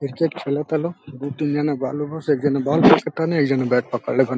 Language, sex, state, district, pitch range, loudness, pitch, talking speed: Hindi, male, Uttar Pradesh, Deoria, 135-155 Hz, -20 LUFS, 145 Hz, 260 wpm